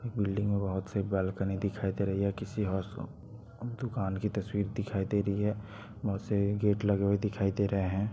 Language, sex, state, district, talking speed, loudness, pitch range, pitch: Hindi, male, Chhattisgarh, Bastar, 200 wpm, -32 LUFS, 100-105 Hz, 100 Hz